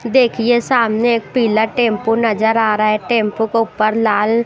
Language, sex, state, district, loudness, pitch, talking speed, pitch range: Hindi, female, Himachal Pradesh, Shimla, -15 LUFS, 225 Hz, 175 wpm, 215-235 Hz